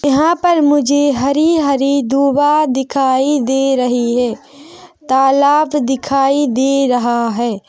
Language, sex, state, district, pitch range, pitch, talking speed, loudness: Hindi, female, Chhattisgarh, Rajnandgaon, 260-290 Hz, 275 Hz, 115 wpm, -13 LUFS